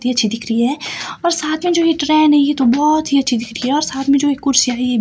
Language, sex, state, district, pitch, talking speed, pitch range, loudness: Hindi, female, Himachal Pradesh, Shimla, 280 Hz, 325 wpm, 250-305 Hz, -15 LUFS